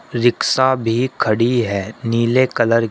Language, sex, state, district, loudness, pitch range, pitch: Hindi, male, Uttar Pradesh, Shamli, -17 LUFS, 115-125 Hz, 115 Hz